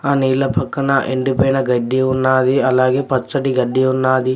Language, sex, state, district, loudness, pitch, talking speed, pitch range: Telugu, male, Telangana, Mahabubabad, -16 LUFS, 130 Hz, 135 wpm, 130-135 Hz